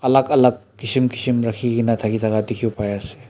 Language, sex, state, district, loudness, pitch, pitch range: Nagamese, male, Nagaland, Dimapur, -20 LUFS, 120 Hz, 110-125 Hz